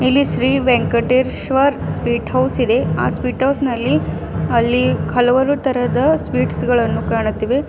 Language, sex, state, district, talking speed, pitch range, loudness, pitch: Kannada, female, Karnataka, Bidar, 125 wpm, 245-270 Hz, -16 LUFS, 255 Hz